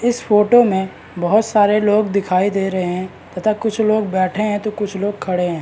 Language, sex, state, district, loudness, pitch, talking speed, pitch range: Hindi, male, Bihar, Madhepura, -17 LUFS, 205 Hz, 215 wpm, 185-215 Hz